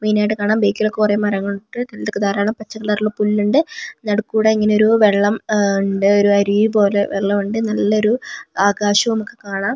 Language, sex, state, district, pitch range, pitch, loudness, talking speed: Malayalam, female, Kerala, Wayanad, 200-215 Hz, 210 Hz, -17 LUFS, 150 wpm